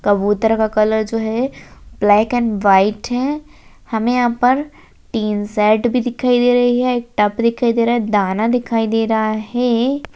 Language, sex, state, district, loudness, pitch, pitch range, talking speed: Hindi, female, Rajasthan, Nagaur, -16 LUFS, 230 Hz, 215-245 Hz, 175 wpm